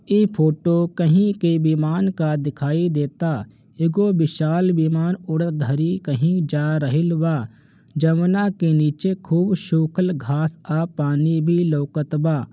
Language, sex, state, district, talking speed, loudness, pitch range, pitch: Bhojpuri, male, Bihar, Gopalganj, 130 wpm, -20 LUFS, 150-175 Hz, 160 Hz